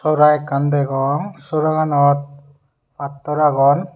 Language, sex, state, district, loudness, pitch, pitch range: Chakma, male, Tripura, Unakoti, -17 LUFS, 145 Hz, 140-150 Hz